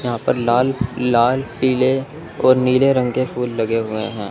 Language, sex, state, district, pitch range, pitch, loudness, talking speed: Hindi, male, Chandigarh, Chandigarh, 120-130 Hz, 125 Hz, -18 LUFS, 180 wpm